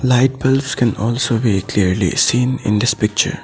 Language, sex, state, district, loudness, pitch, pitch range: English, male, Assam, Sonitpur, -16 LUFS, 120 Hz, 105-130 Hz